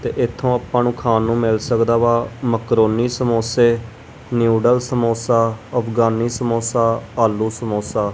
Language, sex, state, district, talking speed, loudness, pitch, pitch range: Punjabi, male, Punjab, Kapurthala, 135 wpm, -18 LUFS, 115 Hz, 115-120 Hz